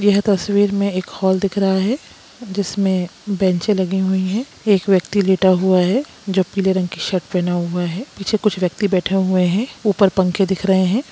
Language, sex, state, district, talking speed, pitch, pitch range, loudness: Hindi, female, Bihar, Jamui, 200 wpm, 190 Hz, 185-205 Hz, -18 LUFS